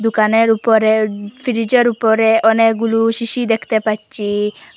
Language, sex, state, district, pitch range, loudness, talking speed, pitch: Bengali, female, Assam, Hailakandi, 215-225 Hz, -15 LUFS, 100 wpm, 225 Hz